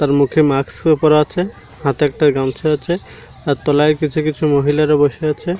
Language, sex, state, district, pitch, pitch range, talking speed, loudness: Bengali, male, Odisha, Malkangiri, 150 Hz, 140-155 Hz, 180 wpm, -16 LUFS